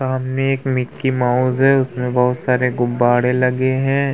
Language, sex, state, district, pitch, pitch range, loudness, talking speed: Hindi, male, Uttar Pradesh, Budaun, 130 Hz, 125-135 Hz, -17 LUFS, 160 wpm